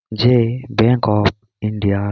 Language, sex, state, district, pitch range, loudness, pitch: Bengali, male, West Bengal, Malda, 105-120 Hz, -17 LUFS, 110 Hz